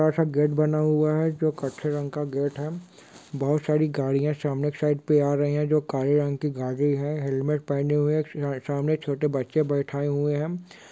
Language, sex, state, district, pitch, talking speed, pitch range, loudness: Hindi, male, Bihar, Kishanganj, 145 Hz, 215 wpm, 140-155 Hz, -25 LUFS